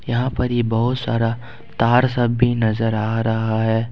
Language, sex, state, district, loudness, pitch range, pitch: Hindi, male, Jharkhand, Ranchi, -19 LUFS, 115-120 Hz, 115 Hz